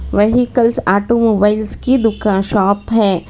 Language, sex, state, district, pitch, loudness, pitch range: Hindi, female, Karnataka, Bangalore, 215 Hz, -14 LUFS, 200-235 Hz